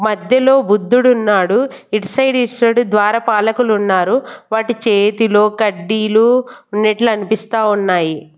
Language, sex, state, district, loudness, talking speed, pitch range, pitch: Telugu, female, Andhra Pradesh, Annamaya, -14 LUFS, 95 wpm, 210-240 Hz, 215 Hz